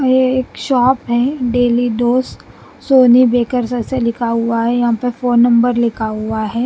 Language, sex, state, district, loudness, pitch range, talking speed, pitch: Hindi, female, Punjab, Pathankot, -14 LUFS, 235-250 Hz, 170 wpm, 245 Hz